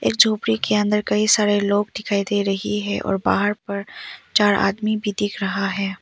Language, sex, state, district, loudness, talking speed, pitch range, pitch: Hindi, female, Arunachal Pradesh, Papum Pare, -20 LUFS, 200 wpm, 200-210 Hz, 205 Hz